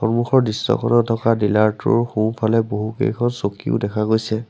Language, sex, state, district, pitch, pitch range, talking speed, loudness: Assamese, male, Assam, Sonitpur, 115 Hz, 110-120 Hz, 120 wpm, -19 LUFS